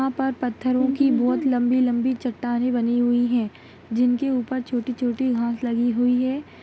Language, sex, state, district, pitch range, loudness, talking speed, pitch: Kumaoni, female, Uttarakhand, Tehri Garhwal, 240-260 Hz, -22 LUFS, 155 wpm, 250 Hz